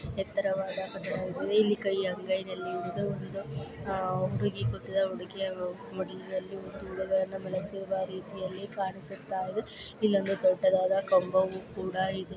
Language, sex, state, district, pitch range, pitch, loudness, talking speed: Kannada, female, Karnataka, Chamarajanagar, 185-195 Hz, 190 Hz, -31 LUFS, 120 wpm